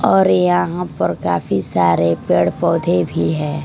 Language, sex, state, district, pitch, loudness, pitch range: Hindi, female, Bihar, Patna, 90 Hz, -17 LUFS, 85-95 Hz